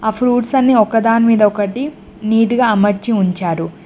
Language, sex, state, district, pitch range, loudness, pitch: Telugu, female, Telangana, Mahabubabad, 205-240 Hz, -14 LUFS, 225 Hz